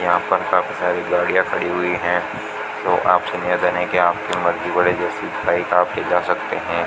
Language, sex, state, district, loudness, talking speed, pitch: Hindi, male, Rajasthan, Bikaner, -19 LUFS, 165 wpm, 90 Hz